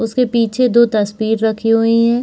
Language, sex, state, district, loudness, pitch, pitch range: Hindi, female, Bihar, Purnia, -14 LUFS, 225 Hz, 220-235 Hz